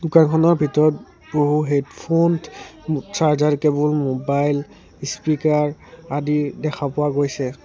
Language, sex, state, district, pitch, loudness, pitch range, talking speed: Assamese, male, Assam, Sonitpur, 150 Hz, -20 LUFS, 145-155 Hz, 95 wpm